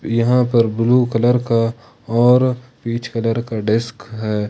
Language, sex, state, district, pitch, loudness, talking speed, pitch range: Hindi, male, Jharkhand, Ranchi, 115 Hz, -17 LUFS, 145 wpm, 115-125 Hz